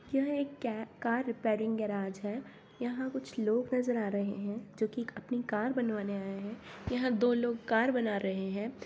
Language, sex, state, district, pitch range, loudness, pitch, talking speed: Hindi, female, Bihar, Lakhisarai, 205-245 Hz, -34 LUFS, 230 Hz, 185 wpm